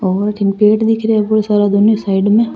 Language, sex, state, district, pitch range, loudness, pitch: Rajasthani, female, Rajasthan, Churu, 200-215 Hz, -13 LUFS, 210 Hz